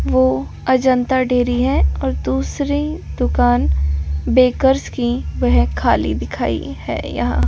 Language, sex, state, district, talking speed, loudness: Hindi, female, Delhi, New Delhi, 110 wpm, -18 LUFS